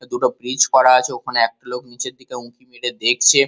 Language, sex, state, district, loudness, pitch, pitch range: Bengali, male, West Bengal, Kolkata, -17 LUFS, 125 Hz, 120-130 Hz